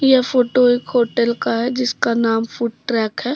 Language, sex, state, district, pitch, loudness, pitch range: Hindi, female, Jharkhand, Deoghar, 240 Hz, -18 LUFS, 230-250 Hz